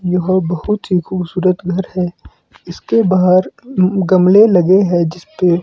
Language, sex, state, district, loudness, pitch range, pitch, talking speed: Hindi, male, Himachal Pradesh, Shimla, -14 LUFS, 180-190 Hz, 185 Hz, 140 wpm